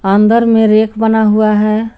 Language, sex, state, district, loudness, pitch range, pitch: Hindi, female, Jharkhand, Garhwa, -10 LUFS, 215-225 Hz, 215 Hz